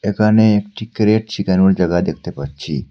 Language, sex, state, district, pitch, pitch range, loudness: Bengali, male, Assam, Hailakandi, 105 Hz, 90-110 Hz, -16 LUFS